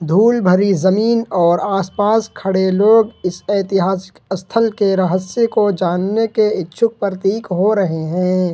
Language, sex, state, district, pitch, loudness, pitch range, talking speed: Hindi, male, Jharkhand, Ranchi, 195 Hz, -16 LUFS, 185-215 Hz, 140 wpm